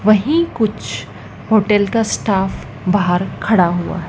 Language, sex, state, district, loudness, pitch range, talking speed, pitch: Hindi, female, Madhya Pradesh, Dhar, -16 LUFS, 170-215 Hz, 115 wpm, 195 Hz